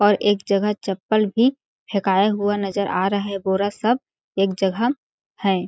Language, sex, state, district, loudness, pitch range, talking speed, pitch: Hindi, female, Chhattisgarh, Balrampur, -21 LUFS, 195-210 Hz, 160 wpm, 200 Hz